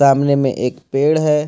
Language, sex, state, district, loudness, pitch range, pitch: Hindi, male, Jharkhand, Ranchi, -16 LUFS, 135-150 Hz, 140 Hz